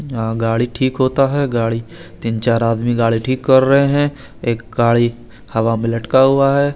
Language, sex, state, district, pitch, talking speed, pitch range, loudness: Hindi, male, Chandigarh, Chandigarh, 120 Hz, 180 wpm, 115-135 Hz, -16 LUFS